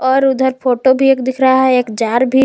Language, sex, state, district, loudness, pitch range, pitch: Hindi, female, Jharkhand, Palamu, -13 LUFS, 255-265 Hz, 260 Hz